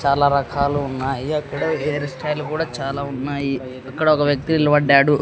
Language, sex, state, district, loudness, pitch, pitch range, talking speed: Telugu, male, Andhra Pradesh, Sri Satya Sai, -20 LUFS, 140 Hz, 135-150 Hz, 150 wpm